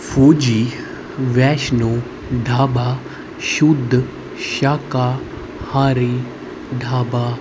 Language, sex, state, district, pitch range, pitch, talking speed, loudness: Hindi, male, Haryana, Rohtak, 120-135 Hz, 125 Hz, 55 wpm, -18 LUFS